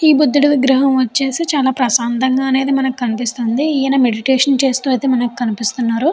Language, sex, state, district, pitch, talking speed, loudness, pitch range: Telugu, female, Andhra Pradesh, Chittoor, 265 Hz, 145 wpm, -15 LUFS, 245-275 Hz